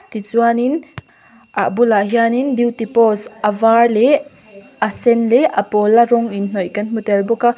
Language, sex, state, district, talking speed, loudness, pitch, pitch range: Mizo, female, Mizoram, Aizawl, 200 wpm, -15 LUFS, 230 Hz, 210-240 Hz